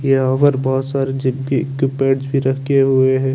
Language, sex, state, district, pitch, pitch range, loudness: Hindi, male, Chandigarh, Chandigarh, 135 Hz, 130-135 Hz, -17 LUFS